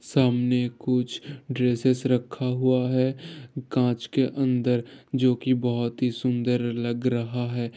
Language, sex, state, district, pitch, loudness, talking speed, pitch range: Hindi, male, Bihar, Gopalganj, 125 Hz, -25 LUFS, 130 wpm, 120-130 Hz